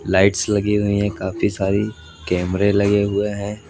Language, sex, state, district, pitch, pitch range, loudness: Hindi, male, Uttar Pradesh, Lalitpur, 100 Hz, 95-105 Hz, -19 LUFS